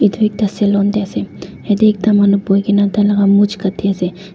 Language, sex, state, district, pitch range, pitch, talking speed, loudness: Nagamese, female, Nagaland, Dimapur, 195-205 Hz, 200 Hz, 180 wpm, -14 LUFS